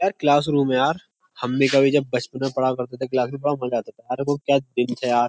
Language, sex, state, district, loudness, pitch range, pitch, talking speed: Hindi, male, Uttar Pradesh, Jyotiba Phule Nagar, -22 LUFS, 125-145 Hz, 135 Hz, 250 wpm